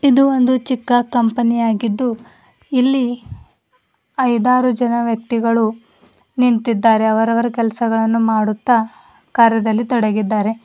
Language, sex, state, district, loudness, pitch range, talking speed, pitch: Kannada, female, Karnataka, Bidar, -16 LUFS, 225-245 Hz, 85 wpm, 235 Hz